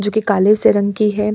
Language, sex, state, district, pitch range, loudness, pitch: Hindi, female, Bihar, Kishanganj, 200-215 Hz, -15 LUFS, 210 Hz